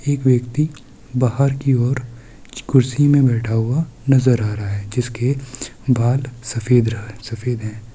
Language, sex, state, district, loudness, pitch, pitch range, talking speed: Hindi, male, Bihar, Kishanganj, -19 LUFS, 125 Hz, 115-135 Hz, 145 wpm